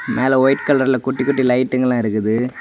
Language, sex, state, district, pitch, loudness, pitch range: Tamil, male, Tamil Nadu, Kanyakumari, 130 Hz, -17 LUFS, 125-130 Hz